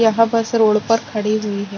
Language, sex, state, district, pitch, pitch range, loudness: Hindi, female, Chhattisgarh, Bilaspur, 215 Hz, 210-230 Hz, -17 LUFS